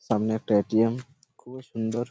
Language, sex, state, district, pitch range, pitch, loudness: Bengali, male, West Bengal, Purulia, 110-130 Hz, 115 Hz, -26 LUFS